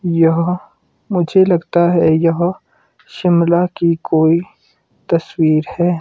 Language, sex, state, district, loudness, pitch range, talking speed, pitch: Hindi, male, Himachal Pradesh, Shimla, -15 LUFS, 165-175 Hz, 100 wpm, 170 Hz